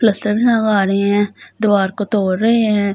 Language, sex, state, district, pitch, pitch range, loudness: Hindi, female, Delhi, New Delhi, 205 Hz, 200-220 Hz, -16 LUFS